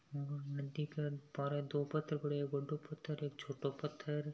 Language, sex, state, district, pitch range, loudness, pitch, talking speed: Marwari, female, Rajasthan, Nagaur, 140-150 Hz, -42 LUFS, 145 Hz, 195 wpm